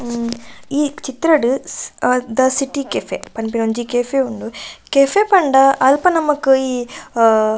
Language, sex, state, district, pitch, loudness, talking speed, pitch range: Tulu, female, Karnataka, Dakshina Kannada, 265 Hz, -16 LUFS, 135 wpm, 235-280 Hz